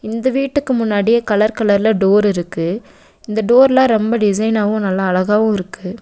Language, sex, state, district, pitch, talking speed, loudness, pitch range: Tamil, female, Tamil Nadu, Nilgiris, 215 Hz, 140 wpm, -15 LUFS, 200-230 Hz